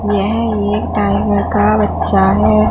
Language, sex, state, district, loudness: Hindi, female, Punjab, Fazilka, -14 LUFS